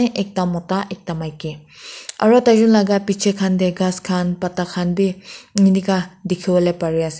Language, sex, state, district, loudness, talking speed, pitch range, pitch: Nagamese, female, Nagaland, Kohima, -18 LUFS, 160 wpm, 180-200 Hz, 185 Hz